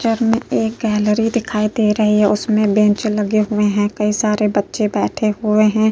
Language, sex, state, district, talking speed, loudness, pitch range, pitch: Hindi, female, Uttar Pradesh, Jyotiba Phule Nagar, 190 wpm, -16 LUFS, 210-220 Hz, 215 Hz